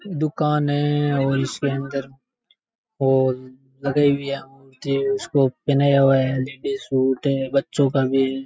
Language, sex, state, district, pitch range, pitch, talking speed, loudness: Rajasthani, male, Rajasthan, Churu, 135-145 Hz, 140 Hz, 150 wpm, -21 LUFS